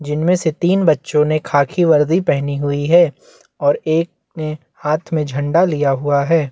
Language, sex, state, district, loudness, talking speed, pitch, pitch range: Hindi, male, Chhattisgarh, Bastar, -16 LUFS, 175 wpm, 155 Hz, 145-165 Hz